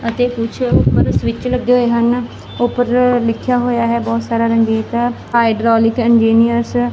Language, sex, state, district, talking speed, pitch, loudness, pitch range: Punjabi, female, Punjab, Fazilka, 155 wpm, 235 Hz, -15 LUFS, 230-245 Hz